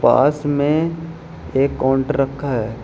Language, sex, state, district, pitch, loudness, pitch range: Hindi, male, Uttar Pradesh, Shamli, 140 Hz, -19 LUFS, 135-155 Hz